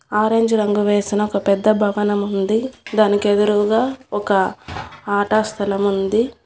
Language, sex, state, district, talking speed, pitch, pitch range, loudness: Telugu, female, Telangana, Hyderabad, 110 wpm, 205 Hz, 205-215 Hz, -18 LUFS